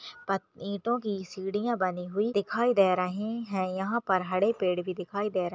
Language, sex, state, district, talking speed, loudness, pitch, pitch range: Hindi, female, Uttar Pradesh, Muzaffarnagar, 185 wpm, -29 LUFS, 195 Hz, 185-210 Hz